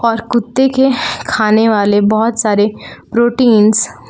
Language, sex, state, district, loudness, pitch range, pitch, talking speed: Hindi, female, Jharkhand, Palamu, -12 LUFS, 210-240 Hz, 225 Hz, 130 wpm